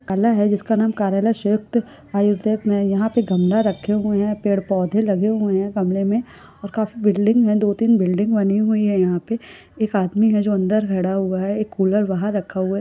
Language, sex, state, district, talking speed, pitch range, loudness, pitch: Hindi, female, Rajasthan, Churu, 205 wpm, 195-215 Hz, -19 LUFS, 205 Hz